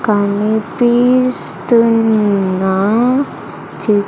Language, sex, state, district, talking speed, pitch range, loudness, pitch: Telugu, female, Andhra Pradesh, Sri Satya Sai, 45 wpm, 200-240 Hz, -13 LUFS, 215 Hz